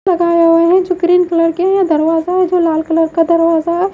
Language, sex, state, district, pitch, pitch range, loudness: Hindi, female, Haryana, Jhajjar, 335 Hz, 330-360 Hz, -12 LUFS